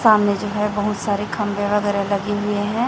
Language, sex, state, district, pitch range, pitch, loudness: Hindi, female, Chhattisgarh, Raipur, 205-210 Hz, 205 Hz, -20 LUFS